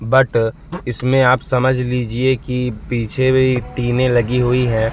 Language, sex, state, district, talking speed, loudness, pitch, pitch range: Hindi, male, Madhya Pradesh, Katni, 145 wpm, -17 LUFS, 125 Hz, 120-130 Hz